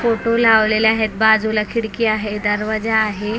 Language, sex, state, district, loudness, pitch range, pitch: Marathi, female, Maharashtra, Mumbai Suburban, -16 LUFS, 215-225 Hz, 220 Hz